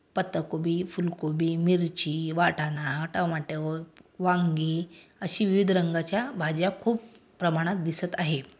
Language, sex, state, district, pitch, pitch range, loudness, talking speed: Marathi, female, Maharashtra, Aurangabad, 170 Hz, 160-180 Hz, -28 LUFS, 95 wpm